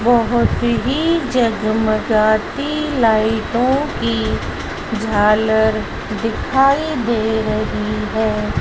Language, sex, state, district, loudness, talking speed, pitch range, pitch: Hindi, female, Madhya Pradesh, Dhar, -17 LUFS, 70 wpm, 215-255 Hz, 220 Hz